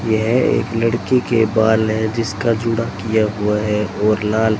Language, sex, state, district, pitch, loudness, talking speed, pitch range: Hindi, male, Rajasthan, Bikaner, 110 Hz, -17 LUFS, 170 wpm, 105-115 Hz